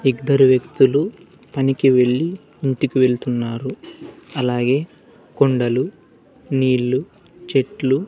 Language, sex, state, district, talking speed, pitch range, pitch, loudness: Telugu, male, Andhra Pradesh, Sri Satya Sai, 75 wpm, 130-155 Hz, 135 Hz, -19 LUFS